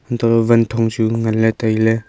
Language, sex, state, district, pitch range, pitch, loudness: Wancho, male, Arunachal Pradesh, Longding, 110-115 Hz, 115 Hz, -16 LUFS